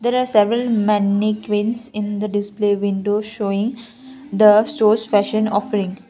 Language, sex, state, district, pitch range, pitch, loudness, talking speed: English, female, Assam, Kamrup Metropolitan, 205-225 Hz, 210 Hz, -18 LUFS, 130 wpm